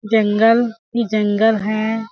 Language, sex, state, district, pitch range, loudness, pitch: Hindi, female, Chhattisgarh, Balrampur, 215-225 Hz, -17 LUFS, 220 Hz